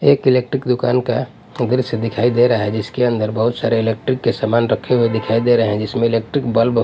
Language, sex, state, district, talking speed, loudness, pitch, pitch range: Hindi, male, Punjab, Pathankot, 220 wpm, -17 LUFS, 115 Hz, 115-125 Hz